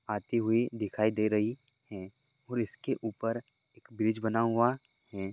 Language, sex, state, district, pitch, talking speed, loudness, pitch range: Hindi, male, Goa, North and South Goa, 115 Hz, 160 wpm, -31 LUFS, 110-125 Hz